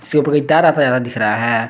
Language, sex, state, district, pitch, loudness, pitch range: Hindi, male, Jharkhand, Garhwa, 130 Hz, -15 LUFS, 115-150 Hz